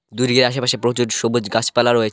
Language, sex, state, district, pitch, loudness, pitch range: Bengali, male, West Bengal, Cooch Behar, 120 Hz, -17 LUFS, 115-125 Hz